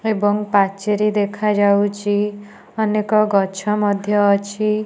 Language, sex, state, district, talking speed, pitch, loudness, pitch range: Odia, female, Odisha, Nuapada, 85 wpm, 205 Hz, -18 LUFS, 200-210 Hz